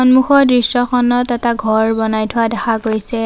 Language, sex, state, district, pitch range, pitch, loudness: Assamese, female, Assam, Sonitpur, 220-245 Hz, 235 Hz, -14 LUFS